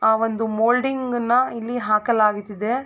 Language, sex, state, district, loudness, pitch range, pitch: Kannada, female, Karnataka, Mysore, -21 LUFS, 220-245 Hz, 230 Hz